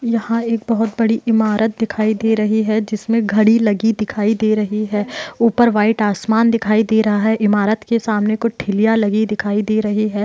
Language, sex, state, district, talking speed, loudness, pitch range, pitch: Hindi, female, Bihar, Jahanabad, 195 wpm, -16 LUFS, 210-225 Hz, 220 Hz